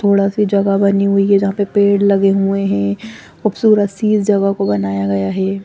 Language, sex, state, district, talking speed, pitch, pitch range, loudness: Hindi, female, Chandigarh, Chandigarh, 210 wpm, 195 Hz, 190-200 Hz, -14 LUFS